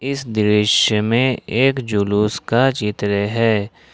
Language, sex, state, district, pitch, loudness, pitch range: Hindi, male, Jharkhand, Ranchi, 110 Hz, -17 LUFS, 105-125 Hz